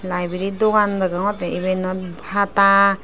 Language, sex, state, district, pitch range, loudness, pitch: Chakma, female, Tripura, Dhalai, 185-200 Hz, -19 LUFS, 190 Hz